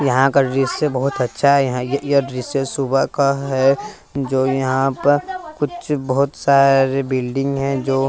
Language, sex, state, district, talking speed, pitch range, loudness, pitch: Hindi, male, Bihar, West Champaran, 170 wpm, 135-140 Hz, -18 LUFS, 135 Hz